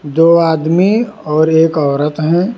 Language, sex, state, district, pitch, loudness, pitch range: Hindi, male, Karnataka, Bangalore, 160 Hz, -12 LUFS, 155-175 Hz